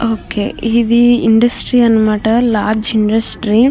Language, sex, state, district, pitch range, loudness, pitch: Telugu, female, Andhra Pradesh, Krishna, 220-235 Hz, -13 LUFS, 225 Hz